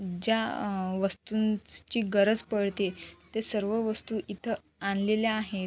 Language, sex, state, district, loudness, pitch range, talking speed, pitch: Marathi, female, Maharashtra, Sindhudurg, -30 LUFS, 195-220 Hz, 115 wpm, 210 Hz